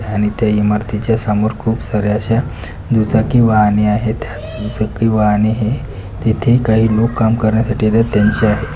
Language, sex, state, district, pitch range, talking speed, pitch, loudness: Marathi, male, Maharashtra, Pune, 105-115 Hz, 150 wpm, 110 Hz, -15 LUFS